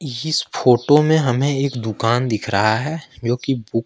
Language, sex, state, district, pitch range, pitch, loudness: Hindi, male, Jharkhand, Ranchi, 115-145 Hz, 125 Hz, -18 LUFS